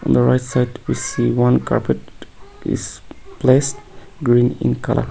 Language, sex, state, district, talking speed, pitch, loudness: English, male, Nagaland, Kohima, 120 wpm, 120 Hz, -18 LUFS